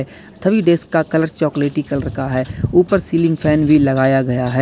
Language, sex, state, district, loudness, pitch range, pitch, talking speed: Hindi, male, Uttar Pradesh, Lalitpur, -16 LUFS, 130-165 Hz, 150 Hz, 195 wpm